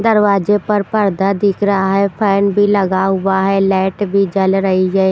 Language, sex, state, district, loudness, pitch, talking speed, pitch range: Hindi, female, Punjab, Pathankot, -14 LUFS, 195 Hz, 185 wpm, 190-205 Hz